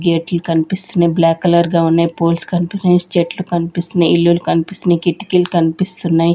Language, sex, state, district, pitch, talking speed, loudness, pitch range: Telugu, female, Andhra Pradesh, Sri Satya Sai, 170 Hz, 130 wpm, -15 LUFS, 170-180 Hz